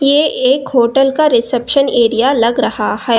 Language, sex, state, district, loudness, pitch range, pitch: Hindi, female, Karnataka, Bangalore, -12 LUFS, 235-275 Hz, 255 Hz